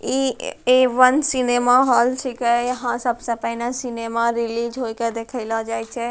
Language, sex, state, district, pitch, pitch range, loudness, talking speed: Angika, female, Bihar, Bhagalpur, 240 Hz, 230-255 Hz, -20 LUFS, 155 wpm